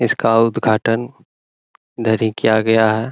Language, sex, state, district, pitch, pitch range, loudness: Hindi, male, Bihar, Araria, 110 Hz, 110-115 Hz, -16 LUFS